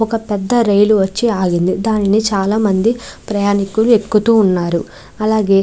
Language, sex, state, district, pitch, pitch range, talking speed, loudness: Telugu, female, Andhra Pradesh, Krishna, 210 Hz, 195-220 Hz, 130 wpm, -14 LUFS